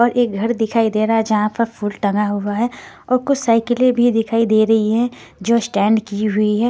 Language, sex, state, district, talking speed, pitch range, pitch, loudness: Hindi, female, Bihar, Patna, 230 wpm, 210-235 Hz, 225 Hz, -17 LUFS